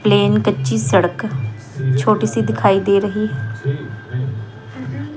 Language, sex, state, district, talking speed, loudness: Hindi, female, Chandigarh, Chandigarh, 95 wpm, -18 LUFS